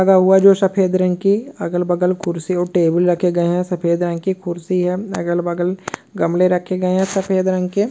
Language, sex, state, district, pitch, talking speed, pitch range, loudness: Hindi, male, West Bengal, Purulia, 180 Hz, 205 wpm, 175-190 Hz, -17 LUFS